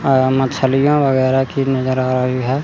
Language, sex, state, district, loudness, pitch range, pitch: Hindi, male, Chandigarh, Chandigarh, -16 LUFS, 130-135 Hz, 130 Hz